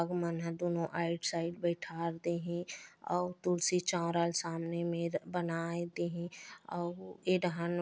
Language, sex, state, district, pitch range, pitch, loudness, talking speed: Chhattisgarhi, female, Chhattisgarh, Bastar, 170-175 Hz, 170 Hz, -36 LUFS, 160 wpm